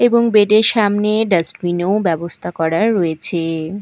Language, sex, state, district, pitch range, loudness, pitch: Bengali, female, Odisha, Malkangiri, 170-215 Hz, -16 LUFS, 195 Hz